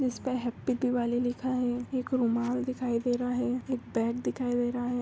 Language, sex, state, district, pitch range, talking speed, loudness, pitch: Hindi, female, Andhra Pradesh, Visakhapatnam, 245-255 Hz, 225 wpm, -30 LUFS, 245 Hz